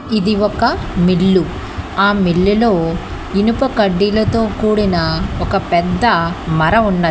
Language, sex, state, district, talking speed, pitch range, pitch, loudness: Telugu, female, Telangana, Hyderabad, 110 wpm, 175-215 Hz, 195 Hz, -15 LUFS